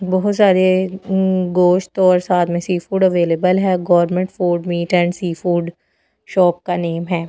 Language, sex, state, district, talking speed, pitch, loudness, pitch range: Hindi, female, Delhi, New Delhi, 165 wpm, 180 Hz, -16 LUFS, 175-185 Hz